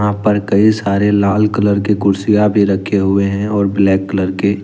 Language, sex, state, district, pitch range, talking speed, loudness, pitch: Hindi, male, Jharkhand, Ranchi, 100-105 Hz, 195 wpm, -14 LUFS, 100 Hz